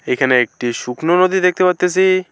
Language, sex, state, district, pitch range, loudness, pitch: Bengali, male, West Bengal, Alipurduar, 125-185 Hz, -15 LUFS, 180 Hz